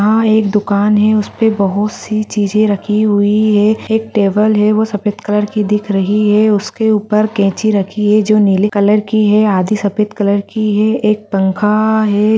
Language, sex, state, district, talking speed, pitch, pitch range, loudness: Hindi, female, Uttar Pradesh, Deoria, 190 wpm, 210 Hz, 205-215 Hz, -13 LUFS